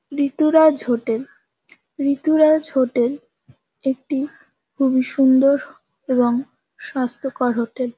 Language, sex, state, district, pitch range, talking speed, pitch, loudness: Bengali, female, West Bengal, Kolkata, 250-285 Hz, 85 wpm, 270 Hz, -19 LUFS